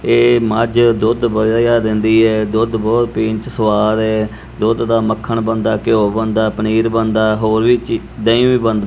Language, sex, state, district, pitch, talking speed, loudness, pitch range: Punjabi, male, Punjab, Kapurthala, 110 Hz, 160 wpm, -14 LUFS, 110-115 Hz